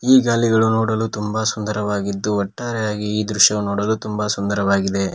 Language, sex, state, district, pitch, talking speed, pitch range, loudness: Kannada, male, Karnataka, Koppal, 105 Hz, 130 wpm, 100-110 Hz, -19 LUFS